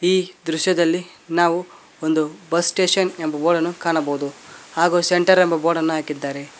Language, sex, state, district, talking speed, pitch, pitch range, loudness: Kannada, male, Karnataka, Koppal, 145 wpm, 170 Hz, 160-180 Hz, -20 LUFS